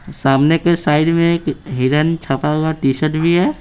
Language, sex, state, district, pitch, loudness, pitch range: Hindi, male, Bihar, Patna, 155 Hz, -16 LUFS, 145-165 Hz